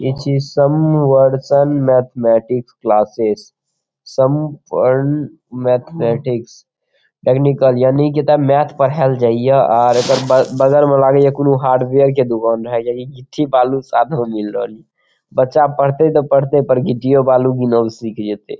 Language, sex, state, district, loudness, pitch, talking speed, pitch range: Maithili, male, Bihar, Saharsa, -14 LUFS, 130 Hz, 140 wpm, 120-140 Hz